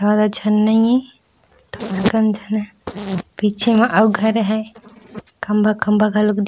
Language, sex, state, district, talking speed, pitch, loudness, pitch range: Chhattisgarhi, female, Chhattisgarh, Raigarh, 130 wpm, 215 Hz, -17 LUFS, 210-220 Hz